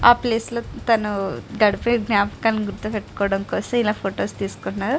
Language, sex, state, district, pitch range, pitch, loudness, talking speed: Telugu, female, Andhra Pradesh, Guntur, 200-235 Hz, 215 Hz, -22 LUFS, 130 wpm